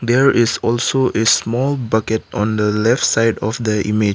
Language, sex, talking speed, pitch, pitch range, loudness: English, male, 190 wpm, 115 Hz, 105-120 Hz, -16 LUFS